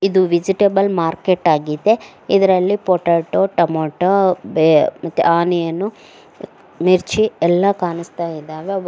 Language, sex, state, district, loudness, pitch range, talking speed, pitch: Kannada, female, Karnataka, Mysore, -16 LUFS, 170-195 Hz, 100 wpm, 180 Hz